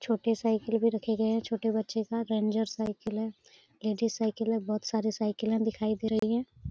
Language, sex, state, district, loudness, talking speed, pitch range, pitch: Hindi, female, Bihar, Saran, -30 LUFS, 225 wpm, 215-225 Hz, 220 Hz